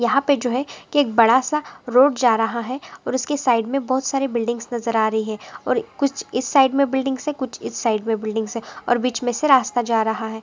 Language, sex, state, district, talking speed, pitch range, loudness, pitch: Hindi, female, Goa, North and South Goa, 205 wpm, 230-275 Hz, -20 LUFS, 250 Hz